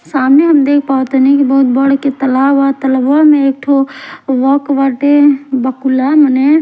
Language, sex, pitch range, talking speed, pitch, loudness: Bhojpuri, female, 265-285 Hz, 120 wpm, 275 Hz, -10 LUFS